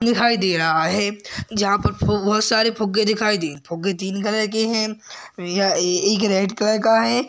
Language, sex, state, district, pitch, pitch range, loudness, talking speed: Hindi, male, Uttar Pradesh, Jalaun, 210 Hz, 195-220 Hz, -19 LUFS, 180 wpm